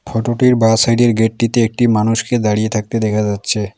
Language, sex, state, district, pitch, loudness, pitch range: Bengali, male, West Bengal, Alipurduar, 115 Hz, -15 LUFS, 110-120 Hz